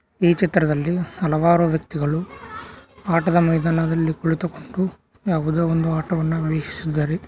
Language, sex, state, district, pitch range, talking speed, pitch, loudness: Kannada, male, Karnataka, Koppal, 160-175 Hz, 90 wpm, 165 Hz, -21 LUFS